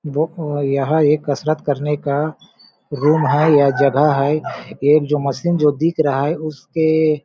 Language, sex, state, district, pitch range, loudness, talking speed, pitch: Hindi, male, Chhattisgarh, Balrampur, 145-155 Hz, -17 LUFS, 155 wpm, 150 Hz